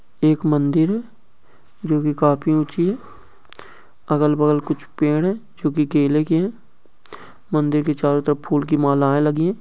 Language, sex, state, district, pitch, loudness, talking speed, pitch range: Hindi, male, Bihar, East Champaran, 150 Hz, -19 LUFS, 175 wpm, 150-165 Hz